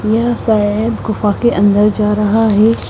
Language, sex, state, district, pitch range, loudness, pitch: Hindi, female, Punjab, Kapurthala, 210-225 Hz, -13 LUFS, 215 Hz